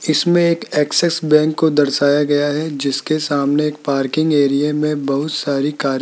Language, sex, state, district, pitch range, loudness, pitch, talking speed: Hindi, male, Rajasthan, Jaipur, 140-155 Hz, -16 LUFS, 150 Hz, 180 wpm